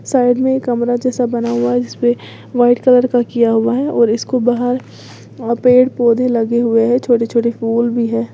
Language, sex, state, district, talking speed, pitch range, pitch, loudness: Hindi, female, Uttar Pradesh, Lalitpur, 210 wpm, 235-250 Hz, 240 Hz, -14 LUFS